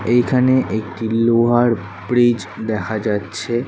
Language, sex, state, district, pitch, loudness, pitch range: Bengali, male, West Bengal, Kolkata, 115 Hz, -18 LUFS, 110-120 Hz